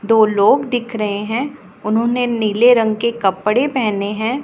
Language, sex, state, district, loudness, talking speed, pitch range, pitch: Hindi, female, Punjab, Pathankot, -16 LUFS, 160 wpm, 210-245 Hz, 225 Hz